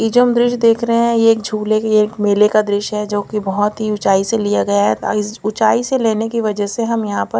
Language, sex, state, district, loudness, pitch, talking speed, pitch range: Hindi, female, Punjab, Fazilka, -16 LUFS, 215 Hz, 275 wpm, 205-230 Hz